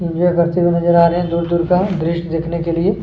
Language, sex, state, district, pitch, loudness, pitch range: Hindi, male, Chhattisgarh, Kabirdham, 170 Hz, -16 LUFS, 170-175 Hz